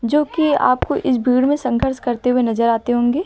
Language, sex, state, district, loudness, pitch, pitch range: Hindi, female, Uttar Pradesh, Lucknow, -17 LUFS, 250 Hz, 240-285 Hz